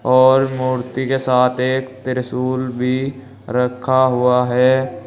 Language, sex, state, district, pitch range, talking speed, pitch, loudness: Hindi, male, Uttar Pradesh, Saharanpur, 125-130 Hz, 120 wpm, 130 Hz, -17 LUFS